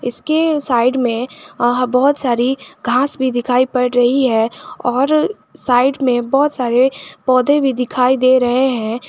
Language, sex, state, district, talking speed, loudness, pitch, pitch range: Hindi, female, Jharkhand, Garhwa, 145 wpm, -15 LUFS, 255 Hz, 245-270 Hz